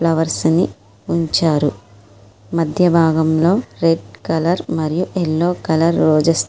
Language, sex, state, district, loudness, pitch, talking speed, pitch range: Telugu, female, Andhra Pradesh, Srikakulam, -17 LUFS, 160 Hz, 110 wpm, 140-170 Hz